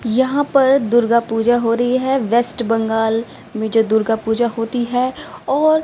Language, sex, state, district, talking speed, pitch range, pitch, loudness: Hindi, female, Haryana, Rohtak, 165 wpm, 225-260 Hz, 235 Hz, -17 LUFS